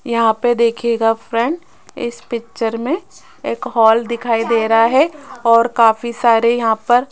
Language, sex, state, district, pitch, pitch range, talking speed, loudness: Hindi, female, Rajasthan, Jaipur, 235 Hz, 230-245 Hz, 160 wpm, -16 LUFS